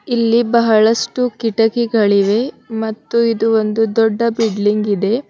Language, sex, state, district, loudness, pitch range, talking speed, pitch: Kannada, female, Karnataka, Bidar, -15 LUFS, 220-235 Hz, 100 wpm, 225 Hz